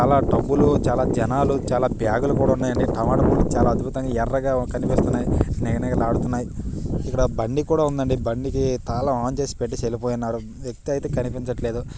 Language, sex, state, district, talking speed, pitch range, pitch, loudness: Telugu, male, Telangana, Nalgonda, 135 wpm, 120-135 Hz, 130 Hz, -22 LUFS